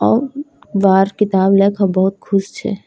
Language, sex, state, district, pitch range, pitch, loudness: Angika, female, Bihar, Bhagalpur, 190-210 Hz, 195 Hz, -15 LUFS